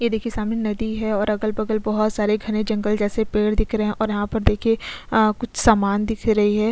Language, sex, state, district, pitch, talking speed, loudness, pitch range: Hindi, female, Chhattisgarh, Sukma, 215 Hz, 225 wpm, -21 LUFS, 210-220 Hz